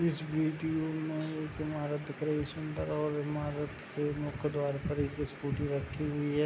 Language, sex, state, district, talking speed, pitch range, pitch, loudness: Hindi, male, Bihar, Begusarai, 185 wpm, 145-155 Hz, 150 Hz, -35 LUFS